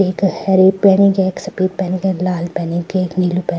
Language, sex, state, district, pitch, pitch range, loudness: Garhwali, female, Uttarakhand, Tehri Garhwal, 185 Hz, 180-190 Hz, -15 LUFS